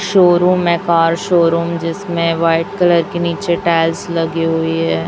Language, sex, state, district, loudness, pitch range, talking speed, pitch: Hindi, female, Chhattisgarh, Raipur, -15 LUFS, 165-175 Hz, 155 wpm, 170 Hz